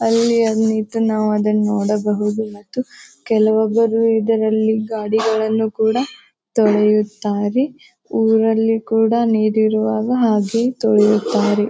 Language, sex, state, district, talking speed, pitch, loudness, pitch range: Kannada, female, Karnataka, Bijapur, 85 wpm, 220 Hz, -17 LUFS, 215-225 Hz